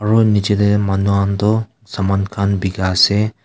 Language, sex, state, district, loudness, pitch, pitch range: Nagamese, male, Nagaland, Kohima, -16 LUFS, 100 Hz, 100-105 Hz